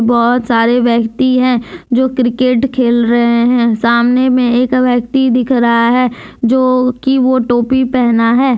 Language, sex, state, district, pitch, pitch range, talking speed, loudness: Hindi, female, Jharkhand, Deoghar, 245 Hz, 235-255 Hz, 145 wpm, -12 LUFS